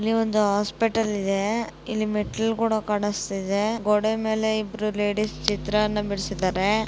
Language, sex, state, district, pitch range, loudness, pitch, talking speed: Kannada, female, Karnataka, Dakshina Kannada, 205-220 Hz, -24 LUFS, 210 Hz, 120 wpm